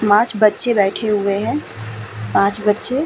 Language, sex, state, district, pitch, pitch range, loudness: Hindi, female, Uttar Pradesh, Muzaffarnagar, 205 Hz, 150-215 Hz, -17 LUFS